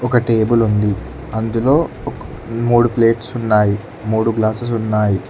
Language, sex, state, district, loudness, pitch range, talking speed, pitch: Telugu, male, Telangana, Hyderabad, -17 LUFS, 105-120 Hz, 125 wpm, 115 Hz